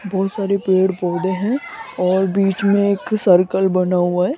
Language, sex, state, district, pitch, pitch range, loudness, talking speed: Hindi, female, Rajasthan, Jaipur, 190 Hz, 185-200 Hz, -17 LUFS, 180 wpm